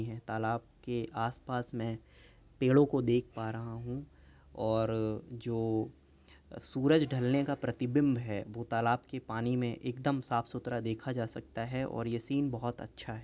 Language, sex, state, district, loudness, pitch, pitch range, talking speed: Hindi, male, Uttar Pradesh, Jyotiba Phule Nagar, -34 LUFS, 120 Hz, 110-130 Hz, 165 wpm